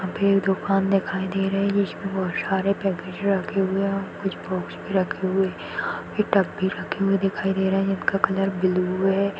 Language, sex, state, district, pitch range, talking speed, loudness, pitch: Hindi, female, Chhattisgarh, Jashpur, 190-195 Hz, 225 wpm, -24 LUFS, 195 Hz